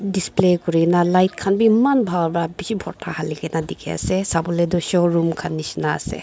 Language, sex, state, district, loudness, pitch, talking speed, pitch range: Nagamese, female, Nagaland, Dimapur, -20 LUFS, 175 Hz, 210 wpm, 165-190 Hz